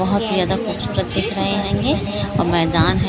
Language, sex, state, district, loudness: Hindi, female, Maharashtra, Pune, -19 LUFS